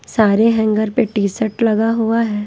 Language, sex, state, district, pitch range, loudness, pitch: Hindi, female, Bihar, Patna, 215-225 Hz, -16 LUFS, 220 Hz